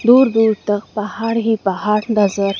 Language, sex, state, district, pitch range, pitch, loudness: Hindi, female, Madhya Pradesh, Dhar, 205-225 Hz, 210 Hz, -16 LUFS